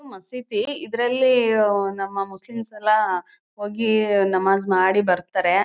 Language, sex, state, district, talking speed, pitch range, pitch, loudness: Kannada, female, Karnataka, Chamarajanagar, 105 wpm, 195-230 Hz, 205 Hz, -21 LUFS